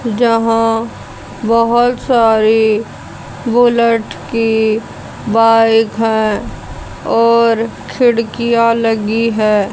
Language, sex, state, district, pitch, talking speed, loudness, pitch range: Hindi, female, Haryana, Jhajjar, 225 Hz, 70 wpm, -13 LUFS, 220-230 Hz